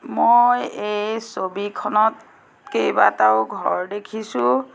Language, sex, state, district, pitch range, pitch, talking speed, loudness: Assamese, female, Assam, Sonitpur, 135-220 Hz, 210 Hz, 75 wpm, -20 LUFS